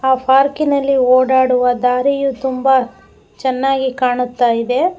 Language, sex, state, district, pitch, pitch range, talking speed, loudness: Kannada, female, Karnataka, Bangalore, 260 Hz, 250-270 Hz, 95 wpm, -15 LUFS